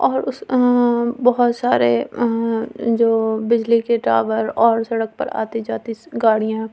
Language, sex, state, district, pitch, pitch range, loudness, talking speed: Hindi, female, Delhi, New Delhi, 230 Hz, 220-235 Hz, -18 LUFS, 145 wpm